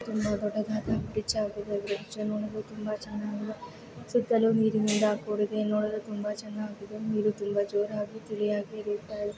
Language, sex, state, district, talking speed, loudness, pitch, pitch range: Kannada, female, Karnataka, Belgaum, 120 wpm, -30 LUFS, 210 Hz, 210-215 Hz